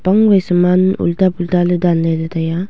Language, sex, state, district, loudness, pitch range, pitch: Wancho, female, Arunachal Pradesh, Longding, -14 LUFS, 170-185 Hz, 180 Hz